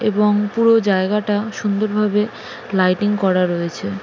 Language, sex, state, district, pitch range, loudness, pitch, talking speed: Bengali, female, West Bengal, Jalpaiguri, 190-210 Hz, -18 LUFS, 205 Hz, 120 wpm